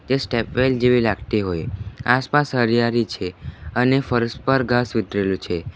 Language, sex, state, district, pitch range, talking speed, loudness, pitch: Gujarati, male, Gujarat, Valsad, 105-125 Hz, 155 wpm, -20 LUFS, 120 Hz